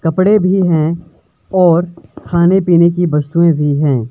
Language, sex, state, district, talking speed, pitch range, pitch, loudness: Hindi, male, Himachal Pradesh, Shimla, 145 wpm, 160-180 Hz, 170 Hz, -12 LUFS